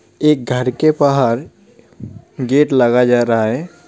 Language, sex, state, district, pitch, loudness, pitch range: Hindi, male, West Bengal, Alipurduar, 125 Hz, -15 LUFS, 120-150 Hz